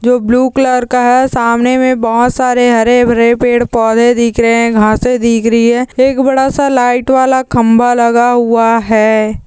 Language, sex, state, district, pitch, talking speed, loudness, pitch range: Hindi, female, Rajasthan, Nagaur, 240 Hz, 175 wpm, -10 LUFS, 230-250 Hz